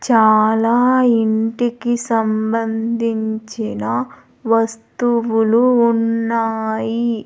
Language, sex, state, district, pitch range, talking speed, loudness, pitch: Telugu, female, Andhra Pradesh, Sri Satya Sai, 220-235 Hz, 40 wpm, -17 LUFS, 225 Hz